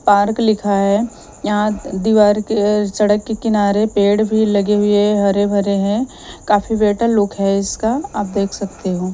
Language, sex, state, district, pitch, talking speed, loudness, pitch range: Hindi, female, Punjab, Kapurthala, 205 Hz, 165 wpm, -16 LUFS, 200-215 Hz